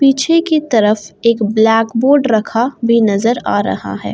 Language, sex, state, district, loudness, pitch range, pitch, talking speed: Hindi, female, Jharkhand, Garhwa, -13 LUFS, 220-270 Hz, 230 Hz, 175 wpm